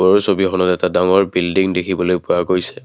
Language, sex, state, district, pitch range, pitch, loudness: Assamese, male, Assam, Kamrup Metropolitan, 90-95 Hz, 90 Hz, -16 LUFS